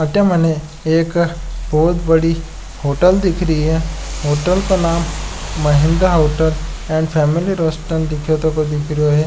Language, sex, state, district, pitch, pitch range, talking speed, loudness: Marwari, male, Rajasthan, Nagaur, 160 Hz, 155-170 Hz, 140 wpm, -16 LUFS